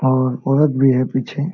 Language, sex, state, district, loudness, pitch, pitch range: Hindi, male, Jharkhand, Sahebganj, -17 LUFS, 130 Hz, 130-145 Hz